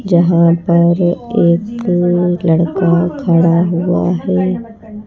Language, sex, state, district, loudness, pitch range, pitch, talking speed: Hindi, female, Madhya Pradesh, Bhopal, -13 LUFS, 170-185 Hz, 175 Hz, 85 wpm